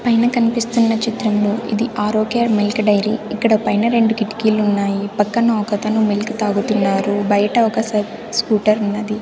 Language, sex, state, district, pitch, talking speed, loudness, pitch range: Telugu, female, Andhra Pradesh, Sri Satya Sai, 215 Hz, 135 wpm, -17 LUFS, 210-225 Hz